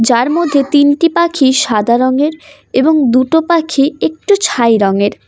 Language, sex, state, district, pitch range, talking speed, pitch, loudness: Bengali, female, West Bengal, Cooch Behar, 250-320 Hz, 135 wpm, 285 Hz, -12 LUFS